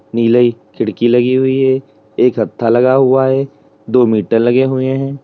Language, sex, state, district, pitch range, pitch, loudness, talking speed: Hindi, male, Uttar Pradesh, Lalitpur, 115-130 Hz, 125 Hz, -13 LUFS, 170 wpm